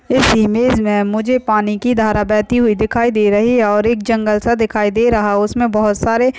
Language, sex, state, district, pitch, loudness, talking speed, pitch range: Hindi, female, West Bengal, Dakshin Dinajpur, 220 Hz, -14 LUFS, 225 wpm, 210-235 Hz